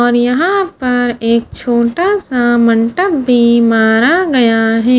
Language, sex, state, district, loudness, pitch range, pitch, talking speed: Hindi, female, Haryana, Charkhi Dadri, -12 LUFS, 230-270 Hz, 240 Hz, 130 wpm